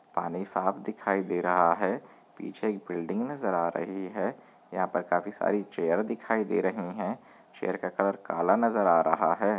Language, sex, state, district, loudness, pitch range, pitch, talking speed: Hindi, male, Maharashtra, Chandrapur, -29 LUFS, 90-105 Hz, 95 Hz, 190 wpm